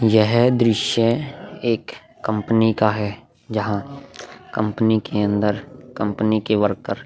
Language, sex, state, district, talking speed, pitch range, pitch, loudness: Hindi, male, Goa, North and South Goa, 120 wpm, 105-120 Hz, 110 Hz, -20 LUFS